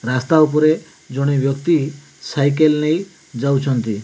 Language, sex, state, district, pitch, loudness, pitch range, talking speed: Odia, male, Odisha, Malkangiri, 145 Hz, -17 LUFS, 135-155 Hz, 105 wpm